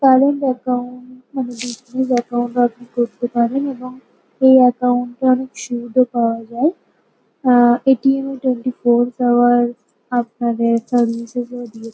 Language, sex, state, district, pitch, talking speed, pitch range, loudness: Bengali, female, West Bengal, North 24 Parganas, 245 Hz, 155 wpm, 240-255 Hz, -17 LUFS